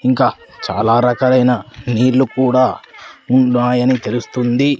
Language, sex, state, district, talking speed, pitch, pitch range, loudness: Telugu, male, Andhra Pradesh, Sri Satya Sai, 85 wpm, 125 Hz, 120-130 Hz, -15 LUFS